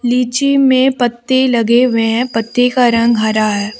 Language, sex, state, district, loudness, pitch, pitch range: Hindi, female, Jharkhand, Deoghar, -13 LUFS, 240 Hz, 230-255 Hz